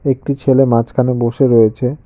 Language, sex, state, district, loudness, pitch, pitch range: Bengali, male, West Bengal, Cooch Behar, -14 LUFS, 130 Hz, 120-135 Hz